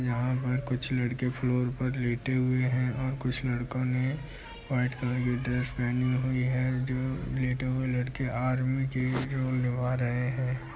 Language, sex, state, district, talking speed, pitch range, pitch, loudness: Hindi, male, Uttar Pradesh, Muzaffarnagar, 150 wpm, 125-130 Hz, 125 Hz, -30 LUFS